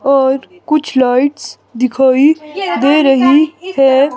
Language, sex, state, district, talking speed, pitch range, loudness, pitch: Hindi, female, Himachal Pradesh, Shimla, 100 wpm, 265-305 Hz, -12 LUFS, 275 Hz